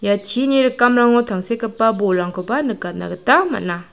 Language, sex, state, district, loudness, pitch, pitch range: Garo, female, Meghalaya, South Garo Hills, -17 LUFS, 225 Hz, 185-245 Hz